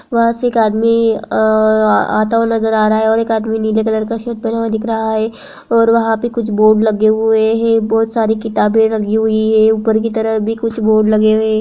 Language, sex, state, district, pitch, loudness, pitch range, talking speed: Hindi, female, Uttarakhand, Tehri Garhwal, 220 Hz, -13 LUFS, 220-225 Hz, 240 wpm